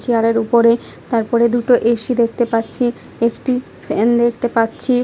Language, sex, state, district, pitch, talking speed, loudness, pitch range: Bengali, female, West Bengal, Jhargram, 235 Hz, 145 wpm, -16 LUFS, 230-240 Hz